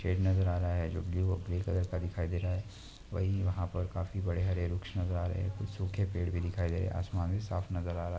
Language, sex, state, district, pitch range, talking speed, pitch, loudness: Hindi, male, Maharashtra, Nagpur, 90-95 Hz, 280 wpm, 90 Hz, -34 LUFS